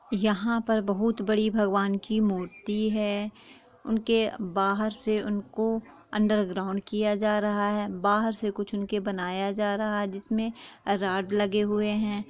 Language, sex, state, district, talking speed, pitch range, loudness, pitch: Hindi, female, Bihar, Saran, 150 wpm, 200-215 Hz, -27 LUFS, 210 Hz